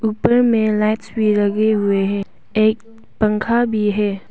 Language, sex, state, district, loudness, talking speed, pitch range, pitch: Hindi, female, Arunachal Pradesh, Papum Pare, -17 LUFS, 165 wpm, 210-225 Hz, 215 Hz